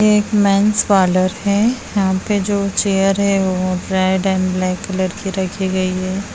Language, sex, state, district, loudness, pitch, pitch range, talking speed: Hindi, female, Bihar, Begusarai, -17 LUFS, 195 Hz, 185-200 Hz, 170 wpm